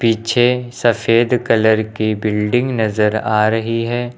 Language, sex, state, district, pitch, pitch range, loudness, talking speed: Hindi, male, Uttar Pradesh, Lucknow, 115 Hz, 110-120 Hz, -16 LUFS, 130 wpm